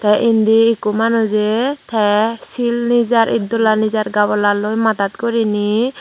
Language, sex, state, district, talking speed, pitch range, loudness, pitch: Chakma, female, Tripura, Dhalai, 120 wpm, 210-230 Hz, -15 LUFS, 220 Hz